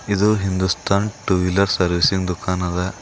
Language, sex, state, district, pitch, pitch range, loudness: Kannada, male, Karnataka, Bidar, 95 Hz, 90-100 Hz, -19 LUFS